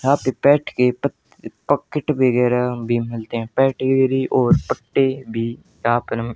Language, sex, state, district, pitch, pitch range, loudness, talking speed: Hindi, male, Haryana, Jhajjar, 125 Hz, 120-135 Hz, -19 LUFS, 150 wpm